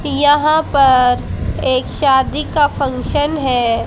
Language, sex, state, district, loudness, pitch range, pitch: Hindi, female, Haryana, Charkhi Dadri, -14 LUFS, 255-290 Hz, 275 Hz